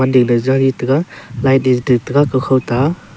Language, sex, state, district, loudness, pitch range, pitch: Wancho, male, Arunachal Pradesh, Longding, -14 LUFS, 125-135 Hz, 130 Hz